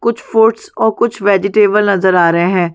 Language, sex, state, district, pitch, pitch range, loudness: Hindi, female, Chhattisgarh, Sarguja, 205 Hz, 185-220 Hz, -12 LUFS